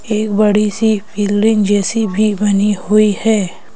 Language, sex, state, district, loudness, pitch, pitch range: Hindi, female, Madhya Pradesh, Bhopal, -14 LUFS, 210 Hz, 205-215 Hz